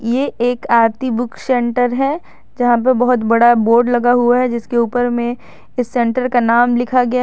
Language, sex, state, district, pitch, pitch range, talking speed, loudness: Hindi, female, Jharkhand, Garhwa, 245 Hz, 235-250 Hz, 200 wpm, -15 LUFS